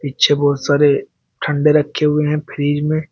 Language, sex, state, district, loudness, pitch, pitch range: Hindi, male, Uttar Pradesh, Shamli, -16 LUFS, 145 Hz, 145-150 Hz